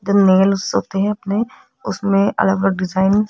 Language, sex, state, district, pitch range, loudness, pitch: Hindi, female, Rajasthan, Jaipur, 190-200 Hz, -17 LUFS, 195 Hz